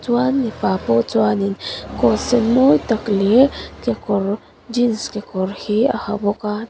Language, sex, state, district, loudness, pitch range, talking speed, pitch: Mizo, female, Mizoram, Aizawl, -18 LUFS, 200-240 Hz, 150 wpm, 215 Hz